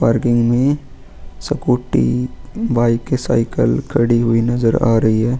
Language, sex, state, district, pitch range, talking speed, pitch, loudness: Hindi, male, Goa, North and South Goa, 115-125 Hz, 120 wpm, 120 Hz, -16 LUFS